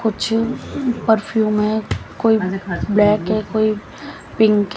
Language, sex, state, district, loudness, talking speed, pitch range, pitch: Hindi, female, Haryana, Jhajjar, -18 LUFS, 115 wpm, 210-220 Hz, 215 Hz